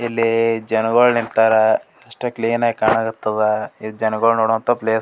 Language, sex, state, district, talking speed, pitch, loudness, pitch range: Kannada, male, Karnataka, Gulbarga, 145 wpm, 115 Hz, -18 LUFS, 110-115 Hz